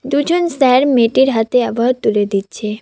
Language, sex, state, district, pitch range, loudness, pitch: Bengali, female, West Bengal, Cooch Behar, 220-270 Hz, -14 LUFS, 250 Hz